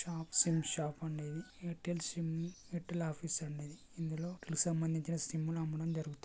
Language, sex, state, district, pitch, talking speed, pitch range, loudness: Telugu, male, Telangana, Karimnagar, 165 Hz, 155 wpm, 160-170 Hz, -38 LUFS